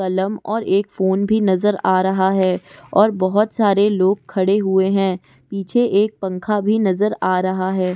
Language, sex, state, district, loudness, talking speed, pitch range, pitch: Hindi, female, Uttarakhand, Tehri Garhwal, -18 LUFS, 180 wpm, 185-210 Hz, 195 Hz